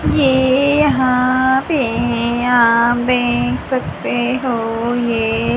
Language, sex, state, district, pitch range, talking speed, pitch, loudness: Hindi, male, Haryana, Rohtak, 235-260 Hz, 85 wpm, 245 Hz, -15 LUFS